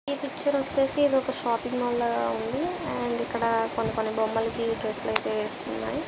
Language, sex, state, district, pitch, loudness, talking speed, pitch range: Telugu, female, Andhra Pradesh, Visakhapatnam, 240 Hz, -26 LUFS, 180 wpm, 225-275 Hz